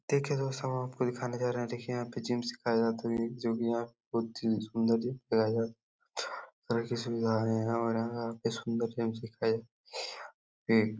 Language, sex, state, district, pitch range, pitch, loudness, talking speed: Hindi, male, Uttar Pradesh, Jalaun, 115-120 Hz, 115 Hz, -33 LUFS, 130 wpm